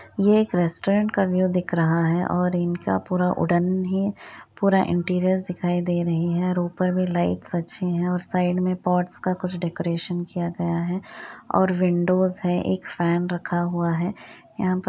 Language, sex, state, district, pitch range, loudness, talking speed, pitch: Hindi, female, Uttar Pradesh, Varanasi, 175-185 Hz, -23 LUFS, 185 wpm, 180 Hz